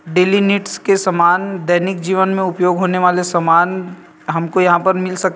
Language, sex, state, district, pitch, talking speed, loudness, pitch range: Hindi, male, Chhattisgarh, Rajnandgaon, 180 Hz, 200 wpm, -15 LUFS, 175-190 Hz